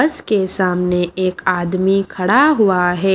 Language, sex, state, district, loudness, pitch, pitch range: Hindi, female, Maharashtra, Washim, -16 LUFS, 185 Hz, 180-195 Hz